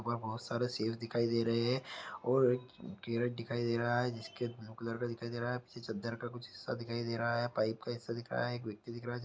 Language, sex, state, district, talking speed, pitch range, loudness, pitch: Hindi, male, Bihar, East Champaran, 270 wpm, 115-120 Hz, -37 LUFS, 120 Hz